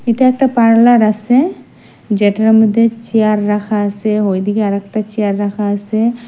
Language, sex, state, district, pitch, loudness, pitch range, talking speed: Bengali, female, Assam, Hailakandi, 215 Hz, -13 LUFS, 205-230 Hz, 155 wpm